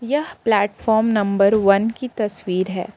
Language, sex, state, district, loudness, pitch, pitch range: Hindi, female, Jharkhand, Palamu, -19 LUFS, 215 Hz, 200-230 Hz